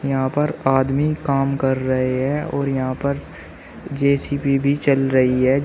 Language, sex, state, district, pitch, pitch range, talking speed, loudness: Hindi, male, Uttar Pradesh, Shamli, 135 Hz, 130-140 Hz, 160 wpm, -19 LUFS